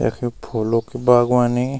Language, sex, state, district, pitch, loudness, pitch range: Garhwali, male, Uttarakhand, Uttarkashi, 120 Hz, -19 LUFS, 115-125 Hz